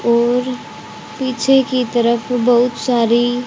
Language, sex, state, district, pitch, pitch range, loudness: Hindi, female, Haryana, Jhajjar, 245 Hz, 235-255 Hz, -16 LUFS